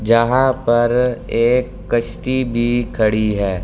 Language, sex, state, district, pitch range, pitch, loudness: Hindi, male, Delhi, New Delhi, 115-125 Hz, 120 Hz, -17 LUFS